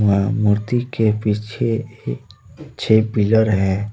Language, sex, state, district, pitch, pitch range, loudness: Hindi, male, Jharkhand, Deoghar, 105 Hz, 105-110 Hz, -19 LUFS